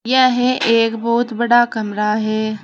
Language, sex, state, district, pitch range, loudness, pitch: Hindi, female, Uttar Pradesh, Saharanpur, 215-240 Hz, -16 LUFS, 230 Hz